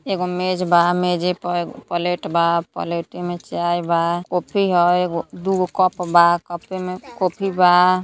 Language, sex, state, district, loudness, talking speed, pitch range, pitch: Hindi, female, Uttar Pradesh, Gorakhpur, -19 LUFS, 165 wpm, 175-185 Hz, 180 Hz